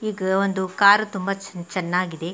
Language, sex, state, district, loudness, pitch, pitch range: Kannada, female, Karnataka, Mysore, -21 LUFS, 190 Hz, 185-200 Hz